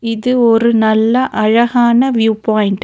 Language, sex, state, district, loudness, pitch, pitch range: Tamil, female, Tamil Nadu, Nilgiris, -12 LUFS, 230 Hz, 220-240 Hz